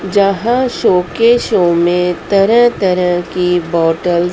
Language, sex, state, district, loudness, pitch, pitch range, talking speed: Hindi, female, Madhya Pradesh, Dhar, -13 LUFS, 180 Hz, 175-200 Hz, 110 wpm